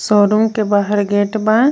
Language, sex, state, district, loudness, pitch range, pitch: Bhojpuri, female, Jharkhand, Palamu, -15 LUFS, 205-220 Hz, 210 Hz